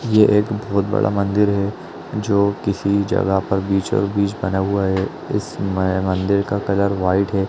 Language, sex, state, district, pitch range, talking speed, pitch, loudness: Hindi, male, Chhattisgarh, Rajnandgaon, 95-100 Hz, 170 wpm, 100 Hz, -19 LUFS